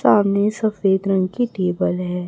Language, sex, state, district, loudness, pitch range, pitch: Hindi, female, Chhattisgarh, Raipur, -19 LUFS, 180-210 Hz, 195 Hz